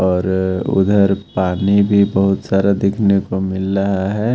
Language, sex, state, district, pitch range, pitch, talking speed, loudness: Hindi, male, Haryana, Jhajjar, 95-100 Hz, 95 Hz, 150 wpm, -16 LUFS